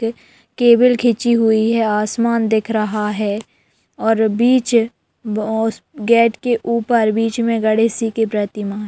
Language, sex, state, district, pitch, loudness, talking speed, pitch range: Hindi, female, Uttar Pradesh, Budaun, 225 Hz, -16 LUFS, 135 wpm, 215-235 Hz